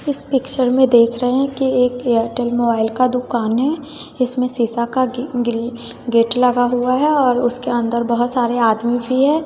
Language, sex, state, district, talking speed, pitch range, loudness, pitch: Hindi, female, Bihar, West Champaran, 175 wpm, 235-260 Hz, -17 LUFS, 245 Hz